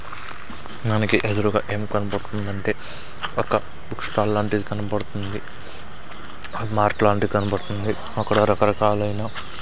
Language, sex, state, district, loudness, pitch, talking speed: Telugu, male, Andhra Pradesh, Sri Satya Sai, -23 LUFS, 105 Hz, 95 wpm